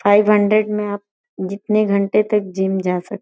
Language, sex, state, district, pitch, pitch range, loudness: Hindi, female, Uttar Pradesh, Gorakhpur, 205 Hz, 195-210 Hz, -18 LUFS